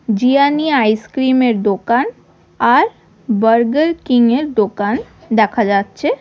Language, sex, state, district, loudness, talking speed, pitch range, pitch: Bengali, female, Odisha, Khordha, -15 LUFS, 115 wpm, 220-275 Hz, 235 Hz